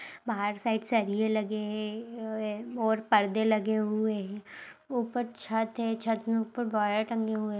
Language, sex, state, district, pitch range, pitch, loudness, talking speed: Hindi, female, Bihar, Jahanabad, 215-225 Hz, 220 Hz, -30 LUFS, 175 wpm